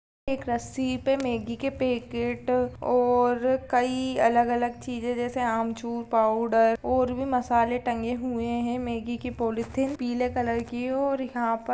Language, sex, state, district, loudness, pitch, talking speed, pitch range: Hindi, female, Uttar Pradesh, Budaun, -26 LUFS, 245 Hz, 150 wpm, 235-255 Hz